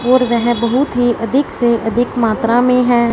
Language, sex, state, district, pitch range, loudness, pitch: Hindi, female, Punjab, Fazilka, 235-250 Hz, -14 LUFS, 240 Hz